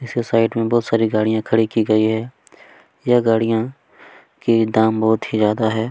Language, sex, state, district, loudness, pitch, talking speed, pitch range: Hindi, male, Chhattisgarh, Kabirdham, -18 LUFS, 110 Hz, 185 wpm, 110-115 Hz